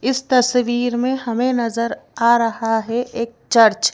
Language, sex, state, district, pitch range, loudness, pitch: Hindi, female, Madhya Pradesh, Bhopal, 230-250 Hz, -18 LUFS, 240 Hz